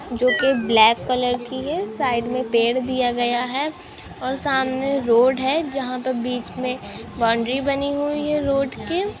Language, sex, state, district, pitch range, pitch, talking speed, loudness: Hindi, female, Goa, North and South Goa, 245-275 Hz, 255 Hz, 170 wpm, -21 LUFS